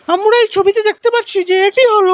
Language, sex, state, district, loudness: Bengali, male, Assam, Hailakandi, -12 LUFS